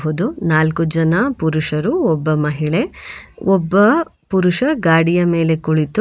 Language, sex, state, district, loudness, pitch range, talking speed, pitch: Kannada, female, Karnataka, Bangalore, -16 LUFS, 155-190 Hz, 110 wpm, 165 Hz